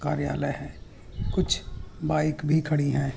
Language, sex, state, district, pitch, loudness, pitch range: Hindi, male, Uttar Pradesh, Hamirpur, 150 Hz, -27 LUFS, 140-155 Hz